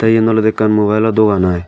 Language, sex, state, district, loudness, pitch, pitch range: Chakma, male, Tripura, Dhalai, -13 LUFS, 110 Hz, 105-110 Hz